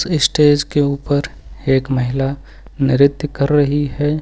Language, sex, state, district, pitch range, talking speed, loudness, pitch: Hindi, male, Uttar Pradesh, Lucknow, 135-145 Hz, 130 wpm, -16 LUFS, 140 Hz